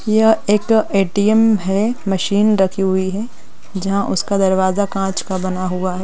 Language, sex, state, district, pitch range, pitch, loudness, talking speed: Hindi, female, Bihar, East Champaran, 190-210 Hz, 195 Hz, -17 LUFS, 160 wpm